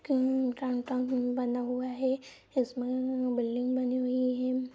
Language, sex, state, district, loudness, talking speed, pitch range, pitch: Hindi, female, Uttar Pradesh, Etah, -31 LUFS, 100 wpm, 250-255 Hz, 255 Hz